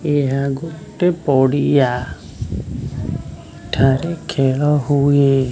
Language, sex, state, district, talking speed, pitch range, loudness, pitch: Odia, male, Odisha, Khordha, 65 wpm, 130-145 Hz, -18 LUFS, 140 Hz